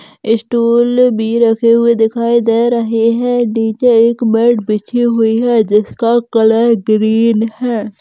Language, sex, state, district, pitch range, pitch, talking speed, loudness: Hindi, female, West Bengal, Dakshin Dinajpur, 225-235 Hz, 230 Hz, 135 wpm, -12 LUFS